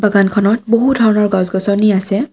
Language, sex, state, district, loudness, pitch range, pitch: Assamese, female, Assam, Kamrup Metropolitan, -13 LUFS, 200-220 Hz, 210 Hz